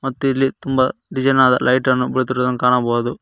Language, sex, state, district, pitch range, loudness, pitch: Kannada, male, Karnataka, Koppal, 125-135 Hz, -17 LUFS, 130 Hz